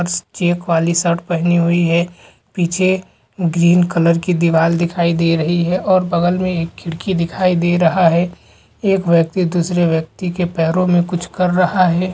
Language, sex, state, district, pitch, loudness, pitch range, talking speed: Hindi, male, Jharkhand, Jamtara, 175 Hz, -16 LUFS, 170-180 Hz, 175 wpm